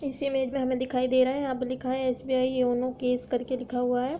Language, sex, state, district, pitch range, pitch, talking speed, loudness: Hindi, female, Uttar Pradesh, Budaun, 250-260 Hz, 255 Hz, 270 wpm, -28 LUFS